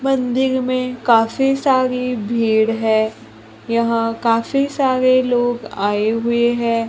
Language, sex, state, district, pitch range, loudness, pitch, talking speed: Hindi, female, Maharashtra, Gondia, 230-255 Hz, -17 LUFS, 235 Hz, 115 wpm